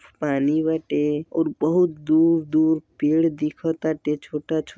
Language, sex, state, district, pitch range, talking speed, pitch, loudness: Bhojpuri, male, Uttar Pradesh, Deoria, 150-160 Hz, 140 wpm, 155 Hz, -22 LUFS